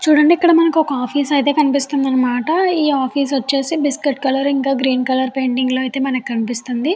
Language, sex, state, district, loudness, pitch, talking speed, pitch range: Telugu, female, Andhra Pradesh, Chittoor, -16 LUFS, 275 Hz, 155 wpm, 260-295 Hz